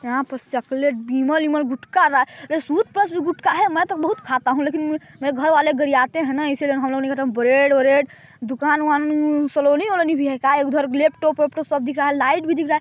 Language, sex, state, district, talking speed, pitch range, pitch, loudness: Hindi, male, Chhattisgarh, Balrampur, 225 wpm, 270-310 Hz, 290 Hz, -19 LUFS